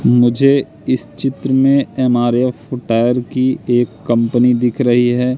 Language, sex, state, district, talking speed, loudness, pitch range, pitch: Hindi, male, Madhya Pradesh, Katni, 135 wpm, -15 LUFS, 120-130 Hz, 125 Hz